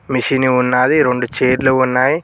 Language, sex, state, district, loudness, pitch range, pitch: Telugu, male, Telangana, Mahabubabad, -14 LUFS, 125-130 Hz, 130 Hz